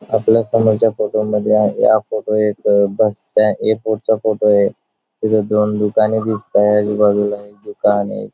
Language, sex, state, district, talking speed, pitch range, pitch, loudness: Marathi, male, Maharashtra, Dhule, 145 wpm, 105-110 Hz, 105 Hz, -16 LUFS